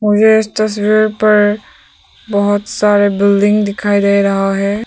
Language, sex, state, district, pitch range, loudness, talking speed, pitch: Hindi, female, Arunachal Pradesh, Papum Pare, 200-215 Hz, -12 LUFS, 150 wpm, 205 Hz